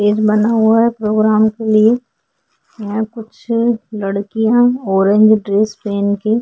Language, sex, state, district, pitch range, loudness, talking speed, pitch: Hindi, female, Maharashtra, Chandrapur, 210-225 Hz, -14 LUFS, 140 wpm, 215 Hz